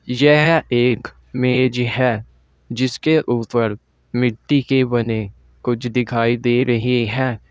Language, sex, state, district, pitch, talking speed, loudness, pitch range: Hindi, male, Uttar Pradesh, Saharanpur, 120 Hz, 110 wpm, -18 LUFS, 115-130 Hz